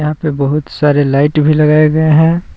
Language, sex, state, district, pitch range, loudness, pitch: Hindi, male, Jharkhand, Palamu, 145-155 Hz, -11 LUFS, 150 Hz